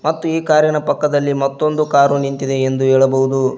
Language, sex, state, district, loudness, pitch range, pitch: Kannada, male, Karnataka, Koppal, -15 LUFS, 135-155 Hz, 140 Hz